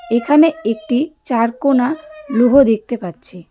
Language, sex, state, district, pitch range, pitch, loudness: Bengali, female, West Bengal, Darjeeling, 225-290 Hz, 245 Hz, -15 LUFS